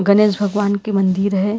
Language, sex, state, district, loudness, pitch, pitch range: Hindi, female, Karnataka, Bangalore, -17 LUFS, 200 Hz, 200-205 Hz